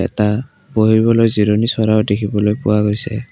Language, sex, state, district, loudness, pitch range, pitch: Assamese, male, Assam, Kamrup Metropolitan, -15 LUFS, 105-115 Hz, 110 Hz